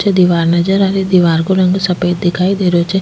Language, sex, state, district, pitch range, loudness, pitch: Rajasthani, female, Rajasthan, Nagaur, 175-190 Hz, -13 LUFS, 180 Hz